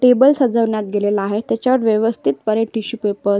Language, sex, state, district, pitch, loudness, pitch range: Marathi, female, Maharashtra, Solapur, 220 Hz, -17 LUFS, 205-235 Hz